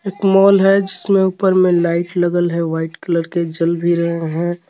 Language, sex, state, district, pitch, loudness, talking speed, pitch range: Hindi, male, Jharkhand, Garhwa, 175 Hz, -16 LUFS, 205 wpm, 170-190 Hz